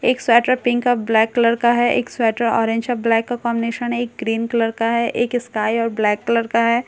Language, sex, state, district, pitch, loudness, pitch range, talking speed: Hindi, female, Bihar, Katihar, 235 Hz, -18 LUFS, 225-240 Hz, 255 wpm